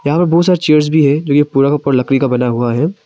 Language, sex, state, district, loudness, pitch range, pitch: Hindi, male, Arunachal Pradesh, Papum Pare, -13 LUFS, 135-155 Hz, 145 Hz